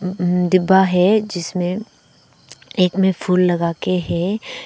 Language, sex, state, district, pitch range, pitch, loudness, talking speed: Hindi, female, Arunachal Pradesh, Papum Pare, 180-190 Hz, 185 Hz, -18 LUFS, 115 wpm